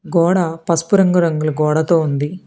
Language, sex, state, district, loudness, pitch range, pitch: Telugu, female, Telangana, Hyderabad, -16 LUFS, 155-180 Hz, 165 Hz